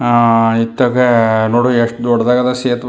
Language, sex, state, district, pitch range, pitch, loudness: Kannada, male, Karnataka, Chamarajanagar, 115-125 Hz, 120 Hz, -13 LUFS